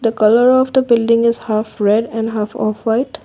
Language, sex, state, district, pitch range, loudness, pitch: English, female, Assam, Kamrup Metropolitan, 215-235 Hz, -15 LUFS, 225 Hz